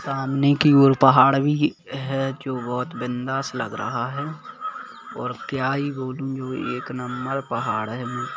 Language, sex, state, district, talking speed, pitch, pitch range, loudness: Hindi, male, Chhattisgarh, Kabirdham, 150 wpm, 135 Hz, 130-140 Hz, -23 LUFS